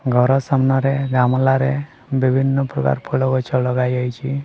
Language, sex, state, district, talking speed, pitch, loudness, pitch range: Odia, male, Odisha, Sambalpur, 110 wpm, 130 Hz, -18 LUFS, 125-135 Hz